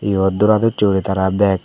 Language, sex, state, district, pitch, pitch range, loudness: Chakma, male, Tripura, Dhalai, 95 Hz, 95-105 Hz, -16 LUFS